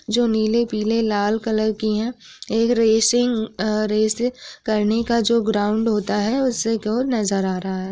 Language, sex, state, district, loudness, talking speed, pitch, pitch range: Hindi, female, Uttar Pradesh, Gorakhpur, -20 LUFS, 165 wpm, 220 Hz, 215-235 Hz